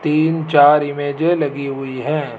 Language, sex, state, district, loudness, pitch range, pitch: Hindi, male, Rajasthan, Jaipur, -16 LUFS, 140-155 Hz, 145 Hz